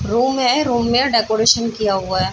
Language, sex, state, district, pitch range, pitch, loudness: Hindi, female, Chhattisgarh, Bilaspur, 220-245 Hz, 230 Hz, -16 LUFS